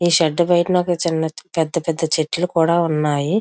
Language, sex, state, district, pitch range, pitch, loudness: Telugu, female, Andhra Pradesh, Visakhapatnam, 160-175 Hz, 165 Hz, -18 LUFS